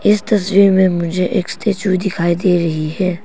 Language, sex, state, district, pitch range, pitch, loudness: Hindi, female, Arunachal Pradesh, Papum Pare, 175-200 Hz, 185 Hz, -15 LUFS